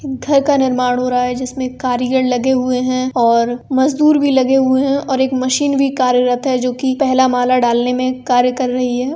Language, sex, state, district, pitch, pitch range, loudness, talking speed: Hindi, female, Uttar Pradesh, Varanasi, 255 Hz, 250-265 Hz, -15 LUFS, 215 wpm